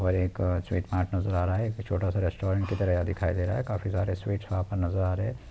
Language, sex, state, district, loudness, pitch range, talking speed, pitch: Hindi, male, Chhattisgarh, Kabirdham, -29 LUFS, 90-100 Hz, 285 wpm, 95 Hz